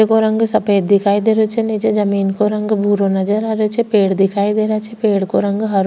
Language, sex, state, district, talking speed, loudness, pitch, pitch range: Rajasthani, female, Rajasthan, Churu, 275 wpm, -15 LUFS, 210 Hz, 200-220 Hz